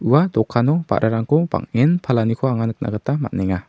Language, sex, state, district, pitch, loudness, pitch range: Garo, male, Meghalaya, South Garo Hills, 115 Hz, -19 LUFS, 110-140 Hz